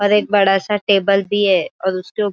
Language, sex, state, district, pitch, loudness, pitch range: Hindi, female, Maharashtra, Aurangabad, 200 Hz, -16 LUFS, 195-205 Hz